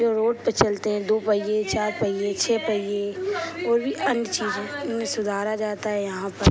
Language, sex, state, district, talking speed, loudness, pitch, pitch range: Hindi, male, Bihar, Purnia, 195 wpm, -24 LUFS, 215 Hz, 205-230 Hz